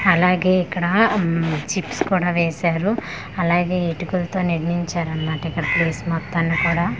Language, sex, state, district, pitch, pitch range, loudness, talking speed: Telugu, female, Andhra Pradesh, Manyam, 175 Hz, 165-185 Hz, -20 LUFS, 130 wpm